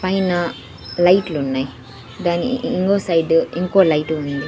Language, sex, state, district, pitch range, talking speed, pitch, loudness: Telugu, female, Andhra Pradesh, Sri Satya Sai, 150-185 Hz, 105 wpm, 170 Hz, -18 LUFS